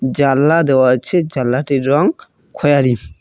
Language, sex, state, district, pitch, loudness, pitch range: Bengali, male, West Bengal, Cooch Behar, 135 Hz, -14 LUFS, 130-150 Hz